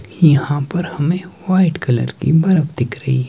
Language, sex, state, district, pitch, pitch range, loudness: Hindi, male, Himachal Pradesh, Shimla, 155 Hz, 135-175 Hz, -16 LUFS